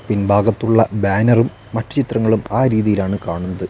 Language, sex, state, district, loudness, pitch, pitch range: Malayalam, male, Kerala, Wayanad, -17 LUFS, 110 Hz, 100-115 Hz